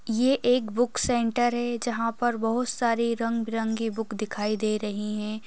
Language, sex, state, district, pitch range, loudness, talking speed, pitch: Hindi, female, Bihar, Darbhanga, 215-240 Hz, -26 LUFS, 175 wpm, 230 Hz